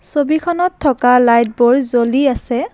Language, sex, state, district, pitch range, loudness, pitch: Assamese, female, Assam, Kamrup Metropolitan, 240-295 Hz, -14 LUFS, 255 Hz